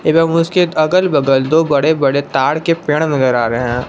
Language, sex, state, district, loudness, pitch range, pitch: Hindi, male, Jharkhand, Palamu, -14 LUFS, 135-165 Hz, 150 Hz